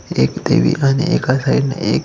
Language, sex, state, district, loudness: Marathi, male, Maharashtra, Solapur, -16 LUFS